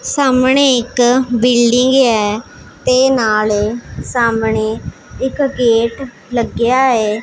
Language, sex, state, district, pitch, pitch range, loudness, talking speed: Punjabi, female, Punjab, Pathankot, 240 Hz, 225-260 Hz, -13 LUFS, 90 wpm